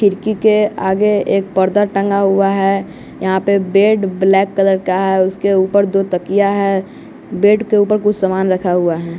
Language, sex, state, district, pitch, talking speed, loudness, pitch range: Hindi, male, Bihar, West Champaran, 195 Hz, 185 wpm, -14 LUFS, 190-205 Hz